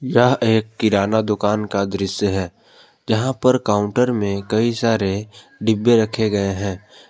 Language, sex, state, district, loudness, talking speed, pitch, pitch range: Hindi, male, Jharkhand, Palamu, -19 LUFS, 145 wpm, 110 Hz, 100-115 Hz